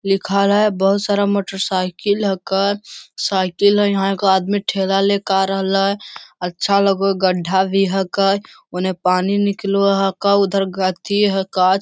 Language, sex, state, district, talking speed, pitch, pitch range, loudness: Hindi, male, Bihar, Lakhisarai, 150 wpm, 195 Hz, 190-200 Hz, -17 LUFS